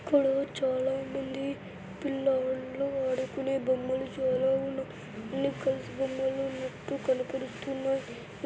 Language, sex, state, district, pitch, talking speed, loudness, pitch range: Telugu, male, Andhra Pradesh, Anantapur, 265 Hz, 70 wpm, -31 LUFS, 260-270 Hz